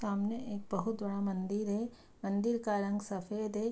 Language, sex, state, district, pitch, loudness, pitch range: Hindi, female, Bihar, Araria, 210 Hz, -36 LUFS, 200-220 Hz